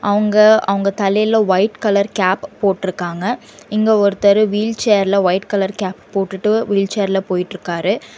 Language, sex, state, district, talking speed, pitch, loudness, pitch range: Tamil, female, Karnataka, Bangalore, 115 wpm, 200 Hz, -16 LUFS, 195-210 Hz